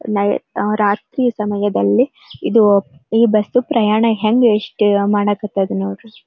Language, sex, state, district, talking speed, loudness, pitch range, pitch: Kannada, female, Karnataka, Dharwad, 125 wpm, -16 LUFS, 200-225 Hz, 210 Hz